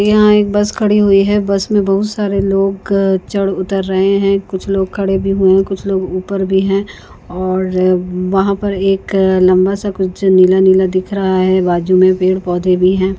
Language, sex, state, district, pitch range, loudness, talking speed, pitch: Hindi, female, Maharashtra, Nagpur, 185-195 Hz, -13 LUFS, 205 wpm, 195 Hz